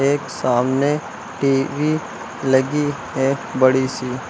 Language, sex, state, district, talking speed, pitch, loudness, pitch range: Hindi, male, Uttar Pradesh, Lucknow, 95 wpm, 135 Hz, -20 LUFS, 130-140 Hz